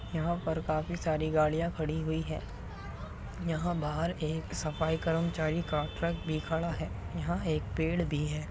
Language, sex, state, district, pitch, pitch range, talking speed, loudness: Hindi, female, Uttar Pradesh, Muzaffarnagar, 160 Hz, 155-165 Hz, 160 wpm, -33 LUFS